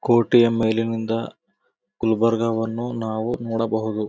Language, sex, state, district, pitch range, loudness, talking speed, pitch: Kannada, male, Karnataka, Gulbarga, 110-115 Hz, -22 LUFS, 90 wpm, 115 Hz